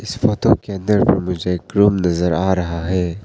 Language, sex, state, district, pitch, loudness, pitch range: Hindi, male, Arunachal Pradesh, Papum Pare, 95 Hz, -18 LUFS, 90-105 Hz